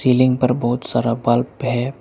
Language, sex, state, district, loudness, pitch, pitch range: Hindi, male, Arunachal Pradesh, Lower Dibang Valley, -18 LUFS, 125 Hz, 120-130 Hz